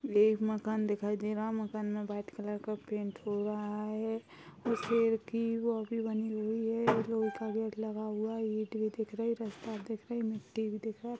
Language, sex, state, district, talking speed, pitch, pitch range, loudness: Hindi, female, Uttar Pradesh, Gorakhpur, 240 wpm, 220 Hz, 210-225 Hz, -35 LUFS